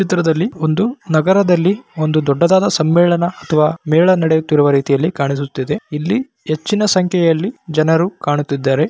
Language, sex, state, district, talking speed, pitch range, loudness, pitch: Kannada, male, Karnataka, Bellary, 110 wpm, 150-185 Hz, -15 LUFS, 160 Hz